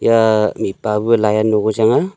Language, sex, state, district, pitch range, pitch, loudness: Wancho, male, Arunachal Pradesh, Longding, 105-115 Hz, 110 Hz, -15 LUFS